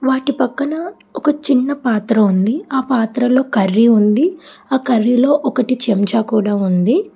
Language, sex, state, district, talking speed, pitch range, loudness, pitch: Telugu, female, Telangana, Hyderabad, 140 wpm, 220-280 Hz, -15 LUFS, 255 Hz